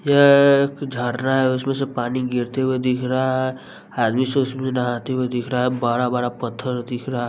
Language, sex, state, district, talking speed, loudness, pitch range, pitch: Hindi, male, Bihar, West Champaran, 195 wpm, -20 LUFS, 125-130 Hz, 130 Hz